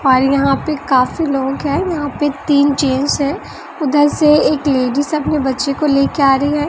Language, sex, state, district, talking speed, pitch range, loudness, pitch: Hindi, female, Bihar, West Champaran, 205 wpm, 275-295 Hz, -15 LUFS, 285 Hz